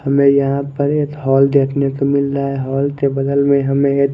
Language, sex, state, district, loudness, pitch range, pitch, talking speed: Hindi, male, Chandigarh, Chandigarh, -16 LUFS, 135-140 Hz, 140 Hz, 230 wpm